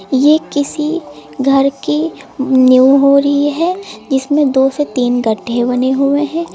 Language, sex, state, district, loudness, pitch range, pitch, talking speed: Hindi, female, Uttar Pradesh, Lucknow, -13 LUFS, 265-300 Hz, 275 Hz, 145 wpm